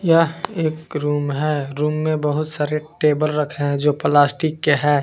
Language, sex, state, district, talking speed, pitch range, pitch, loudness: Hindi, male, Jharkhand, Palamu, 180 wpm, 145-155 Hz, 150 Hz, -20 LUFS